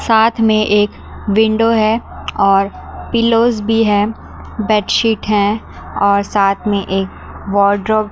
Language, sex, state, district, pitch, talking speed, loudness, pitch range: Hindi, female, Chandigarh, Chandigarh, 215 Hz, 135 wpm, -14 LUFS, 200-225 Hz